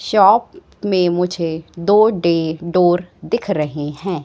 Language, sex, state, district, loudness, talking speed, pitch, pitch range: Hindi, female, Madhya Pradesh, Katni, -17 LUFS, 125 wpm, 175 Hz, 165-195 Hz